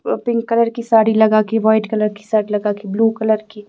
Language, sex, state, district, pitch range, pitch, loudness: Hindi, female, Himachal Pradesh, Shimla, 210-225 Hz, 220 Hz, -16 LUFS